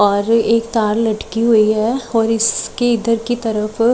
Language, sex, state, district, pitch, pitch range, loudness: Hindi, female, Chhattisgarh, Raipur, 225 Hz, 220-230 Hz, -16 LUFS